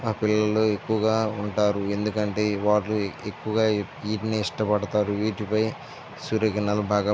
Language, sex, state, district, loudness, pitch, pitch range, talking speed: Telugu, male, Andhra Pradesh, Visakhapatnam, -25 LUFS, 105 Hz, 105-110 Hz, 115 wpm